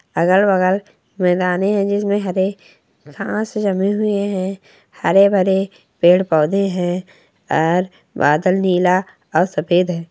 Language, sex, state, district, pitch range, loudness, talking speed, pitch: Hindi, female, Chhattisgarh, Sukma, 180-195 Hz, -17 LUFS, 120 wpm, 185 Hz